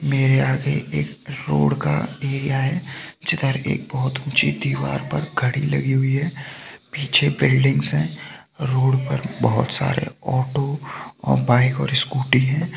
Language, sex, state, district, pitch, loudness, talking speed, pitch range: Hindi, male, Rajasthan, Nagaur, 135 Hz, -21 LUFS, 140 wpm, 125-145 Hz